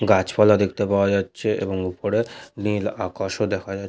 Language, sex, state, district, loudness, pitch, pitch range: Bengali, male, West Bengal, Malda, -22 LUFS, 100 Hz, 95-105 Hz